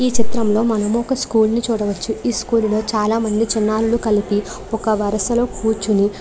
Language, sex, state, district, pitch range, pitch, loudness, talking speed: Telugu, female, Andhra Pradesh, Krishna, 215-230 Hz, 220 Hz, -18 LUFS, 185 wpm